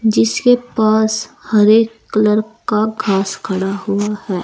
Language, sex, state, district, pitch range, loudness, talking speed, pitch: Hindi, female, Uttar Pradesh, Saharanpur, 195-220 Hz, -15 LUFS, 120 wpm, 215 Hz